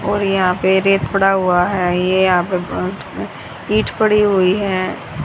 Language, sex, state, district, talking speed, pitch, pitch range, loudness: Hindi, female, Haryana, Jhajjar, 180 wpm, 190 Hz, 180-195 Hz, -16 LUFS